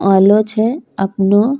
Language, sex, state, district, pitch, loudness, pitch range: Angika, female, Bihar, Bhagalpur, 210 Hz, -14 LUFS, 195-230 Hz